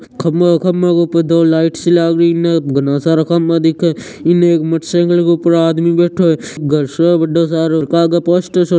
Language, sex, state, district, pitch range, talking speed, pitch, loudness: Hindi, male, Rajasthan, Churu, 165-170 Hz, 210 wpm, 170 Hz, -13 LUFS